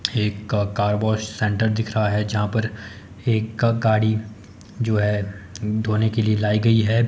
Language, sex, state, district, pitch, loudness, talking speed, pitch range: Hindi, male, Himachal Pradesh, Shimla, 110 Hz, -22 LUFS, 180 wpm, 105-110 Hz